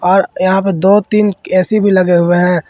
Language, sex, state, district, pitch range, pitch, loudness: Hindi, male, Jharkhand, Ranchi, 180-200 Hz, 185 Hz, -12 LUFS